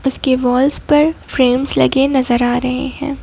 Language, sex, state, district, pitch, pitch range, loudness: Hindi, female, Madhya Pradesh, Bhopal, 265 Hz, 250-280 Hz, -15 LUFS